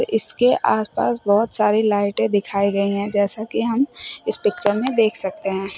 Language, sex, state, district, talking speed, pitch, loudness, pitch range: Hindi, female, Uttar Pradesh, Shamli, 175 wpm, 210 Hz, -20 LUFS, 200-230 Hz